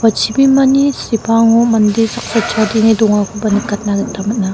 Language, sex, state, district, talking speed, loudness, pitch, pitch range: Garo, female, Meghalaya, South Garo Hills, 130 wpm, -13 LUFS, 225 Hz, 210-230 Hz